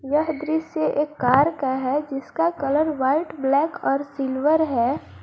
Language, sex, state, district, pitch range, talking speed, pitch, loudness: Hindi, female, Jharkhand, Garhwa, 270-315 Hz, 135 wpm, 290 Hz, -22 LUFS